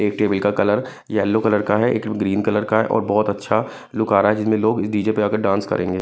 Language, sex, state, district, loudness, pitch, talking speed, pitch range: Hindi, male, Punjab, Kapurthala, -19 LUFS, 105 Hz, 280 wpm, 105-110 Hz